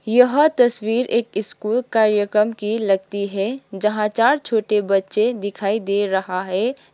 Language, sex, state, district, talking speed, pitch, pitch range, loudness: Hindi, female, Sikkim, Gangtok, 140 wpm, 215 Hz, 200-235 Hz, -19 LUFS